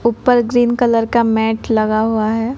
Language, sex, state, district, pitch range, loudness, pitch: Hindi, female, Odisha, Nuapada, 220-240 Hz, -15 LUFS, 230 Hz